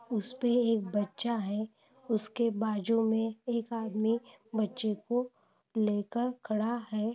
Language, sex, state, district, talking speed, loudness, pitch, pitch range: Hindi, female, Maharashtra, Nagpur, 115 wpm, -32 LUFS, 225 Hz, 215-235 Hz